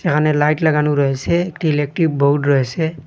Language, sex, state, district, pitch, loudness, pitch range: Bengali, male, Assam, Hailakandi, 150 Hz, -17 LUFS, 145-160 Hz